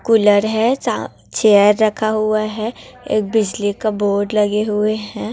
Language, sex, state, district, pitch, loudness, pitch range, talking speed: Hindi, female, Chhattisgarh, Raipur, 215 Hz, -17 LUFS, 210-220 Hz, 160 wpm